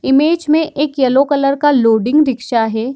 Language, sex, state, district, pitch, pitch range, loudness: Hindi, female, Bihar, Darbhanga, 275 Hz, 245-295 Hz, -13 LUFS